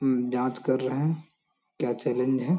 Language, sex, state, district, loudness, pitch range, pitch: Hindi, male, Bihar, Jamui, -28 LUFS, 125-145 Hz, 130 Hz